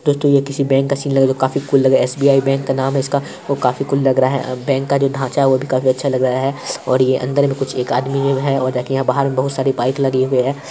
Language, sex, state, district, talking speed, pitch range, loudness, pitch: Hindi, male, Bihar, Purnia, 330 wpm, 130-140 Hz, -16 LUFS, 135 Hz